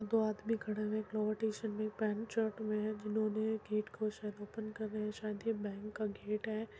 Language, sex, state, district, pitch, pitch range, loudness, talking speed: Hindi, male, Uttar Pradesh, Muzaffarnagar, 215 Hz, 210-220 Hz, -38 LUFS, 255 wpm